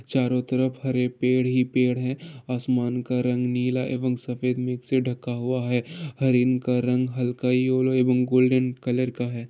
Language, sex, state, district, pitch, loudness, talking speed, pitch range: Hindi, male, Bihar, Gopalganj, 125 Hz, -24 LUFS, 175 wpm, 125-130 Hz